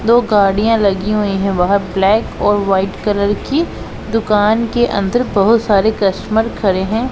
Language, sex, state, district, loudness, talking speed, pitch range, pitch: Hindi, female, Punjab, Pathankot, -14 LUFS, 160 wpm, 195-225 Hz, 205 Hz